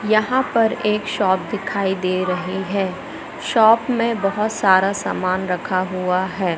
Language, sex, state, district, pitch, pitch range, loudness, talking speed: Hindi, female, Madhya Pradesh, Katni, 195 Hz, 185-220 Hz, -19 LUFS, 145 wpm